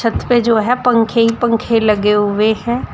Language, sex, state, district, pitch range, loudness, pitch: Hindi, female, Uttar Pradesh, Shamli, 215-240 Hz, -14 LUFS, 230 Hz